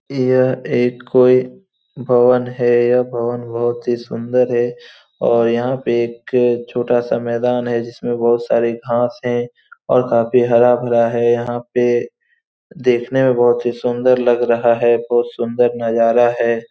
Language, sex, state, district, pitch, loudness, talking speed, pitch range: Hindi, male, Bihar, Saran, 120 Hz, -16 LUFS, 160 wpm, 120-125 Hz